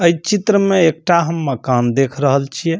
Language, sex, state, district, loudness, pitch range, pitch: Maithili, male, Bihar, Samastipur, -15 LUFS, 135-175 Hz, 165 Hz